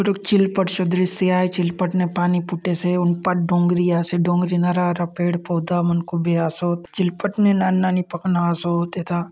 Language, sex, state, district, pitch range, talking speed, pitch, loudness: Halbi, male, Chhattisgarh, Bastar, 175-185 Hz, 205 wpm, 175 Hz, -20 LUFS